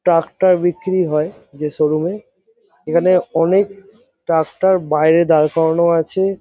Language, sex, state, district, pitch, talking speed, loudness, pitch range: Bengali, male, West Bengal, Jhargram, 170 Hz, 120 wpm, -16 LUFS, 160-190 Hz